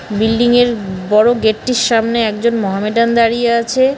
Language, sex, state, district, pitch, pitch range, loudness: Bengali, female, West Bengal, Cooch Behar, 230 Hz, 215-240 Hz, -14 LUFS